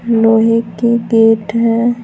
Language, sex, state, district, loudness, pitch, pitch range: Hindi, female, Bihar, Patna, -12 LUFS, 230 Hz, 225-235 Hz